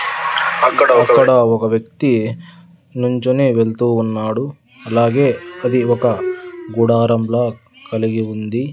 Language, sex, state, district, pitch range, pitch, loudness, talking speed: Telugu, male, Andhra Pradesh, Sri Satya Sai, 115-135 Hz, 120 Hz, -16 LUFS, 80 wpm